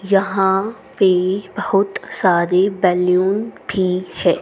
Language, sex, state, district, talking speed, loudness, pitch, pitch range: Hindi, female, Haryana, Jhajjar, 95 wpm, -17 LUFS, 190 Hz, 185-195 Hz